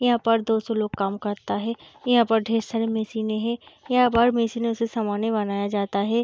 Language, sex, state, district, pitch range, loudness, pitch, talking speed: Hindi, female, Bihar, Darbhanga, 210-235 Hz, -24 LUFS, 225 Hz, 210 wpm